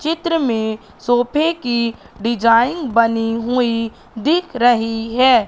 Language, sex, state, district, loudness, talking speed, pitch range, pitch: Hindi, female, Madhya Pradesh, Katni, -17 LUFS, 110 wpm, 230-260 Hz, 240 Hz